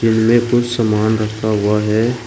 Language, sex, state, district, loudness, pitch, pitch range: Hindi, male, Uttar Pradesh, Shamli, -15 LUFS, 110 Hz, 110-120 Hz